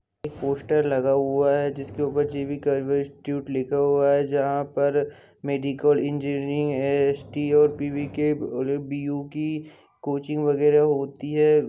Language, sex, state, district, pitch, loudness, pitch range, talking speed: Hindi, male, Bihar, Sitamarhi, 140 Hz, -24 LUFS, 140-145 Hz, 105 wpm